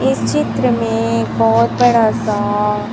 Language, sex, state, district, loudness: Hindi, male, Chhattisgarh, Raipur, -15 LUFS